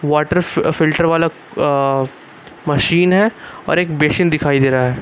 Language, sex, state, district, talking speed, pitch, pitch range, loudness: Hindi, male, Uttar Pradesh, Lucknow, 155 wpm, 155 Hz, 140-170 Hz, -15 LUFS